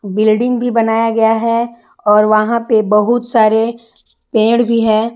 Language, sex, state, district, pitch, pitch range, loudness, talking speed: Hindi, female, Jharkhand, Garhwa, 225 Hz, 215-235 Hz, -13 LUFS, 150 wpm